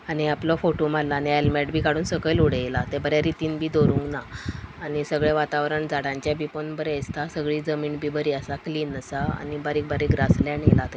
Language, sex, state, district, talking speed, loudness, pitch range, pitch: Konkani, female, Goa, North and South Goa, 195 wpm, -25 LUFS, 145-155 Hz, 150 Hz